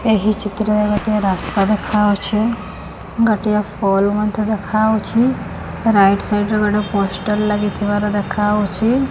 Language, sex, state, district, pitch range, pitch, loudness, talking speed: Odia, female, Odisha, Khordha, 205-215 Hz, 210 Hz, -17 LUFS, 110 wpm